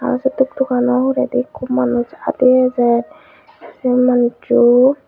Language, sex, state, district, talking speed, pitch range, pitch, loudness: Chakma, female, Tripura, Unakoti, 130 wpm, 245-265 Hz, 255 Hz, -15 LUFS